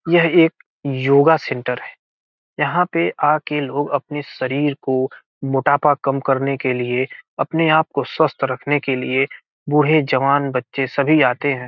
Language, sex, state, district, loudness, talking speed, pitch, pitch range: Hindi, male, Bihar, Gopalganj, -18 LUFS, 160 wpm, 140 Hz, 135-150 Hz